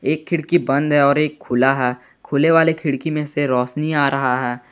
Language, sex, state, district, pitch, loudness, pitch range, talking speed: Hindi, male, Jharkhand, Garhwa, 145 Hz, -18 LUFS, 125-155 Hz, 215 wpm